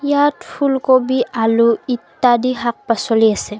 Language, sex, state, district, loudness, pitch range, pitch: Assamese, female, Assam, Kamrup Metropolitan, -16 LUFS, 225-260 Hz, 245 Hz